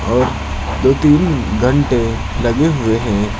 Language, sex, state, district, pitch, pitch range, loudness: Hindi, male, Uttar Pradesh, Lucknow, 115 Hz, 100-140 Hz, -15 LUFS